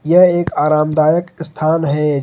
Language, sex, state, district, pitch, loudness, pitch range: Hindi, male, Jharkhand, Ranchi, 155 Hz, -14 LUFS, 150-170 Hz